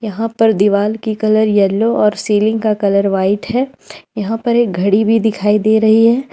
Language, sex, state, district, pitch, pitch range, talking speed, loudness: Hindi, female, Jharkhand, Ranchi, 215 Hz, 205-225 Hz, 200 wpm, -14 LUFS